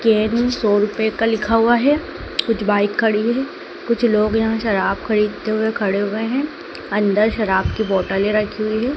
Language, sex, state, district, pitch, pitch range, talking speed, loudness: Hindi, male, Madhya Pradesh, Dhar, 220 Hz, 205-230 Hz, 180 wpm, -18 LUFS